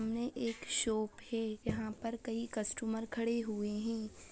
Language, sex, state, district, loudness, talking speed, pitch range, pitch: Hindi, female, Bihar, Jamui, -38 LUFS, 180 wpm, 215-230 Hz, 225 Hz